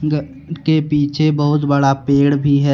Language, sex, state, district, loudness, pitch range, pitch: Hindi, male, Jharkhand, Deoghar, -16 LUFS, 140-150 Hz, 145 Hz